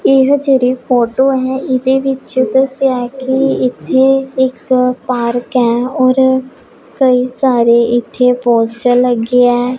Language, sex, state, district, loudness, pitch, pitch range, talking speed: Punjabi, female, Punjab, Pathankot, -12 LUFS, 255 Hz, 245-265 Hz, 120 wpm